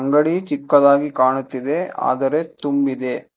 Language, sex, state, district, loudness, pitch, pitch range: Kannada, male, Karnataka, Bangalore, -18 LUFS, 140 Hz, 135-145 Hz